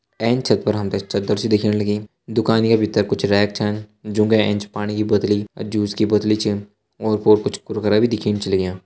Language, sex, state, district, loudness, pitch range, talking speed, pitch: Hindi, male, Uttarakhand, Uttarkashi, -19 LUFS, 105-110 Hz, 230 wpm, 105 Hz